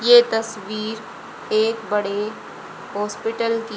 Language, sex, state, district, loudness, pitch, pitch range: Hindi, female, Haryana, Rohtak, -22 LUFS, 220 Hz, 210-225 Hz